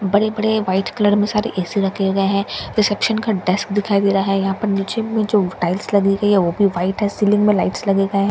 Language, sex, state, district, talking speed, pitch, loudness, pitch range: Hindi, female, Bihar, Katihar, 260 wpm, 200 Hz, -18 LUFS, 195-210 Hz